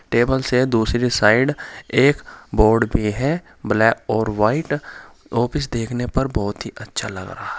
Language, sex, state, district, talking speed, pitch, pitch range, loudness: Hindi, male, Uttar Pradesh, Saharanpur, 160 wpm, 120 Hz, 110-135 Hz, -20 LUFS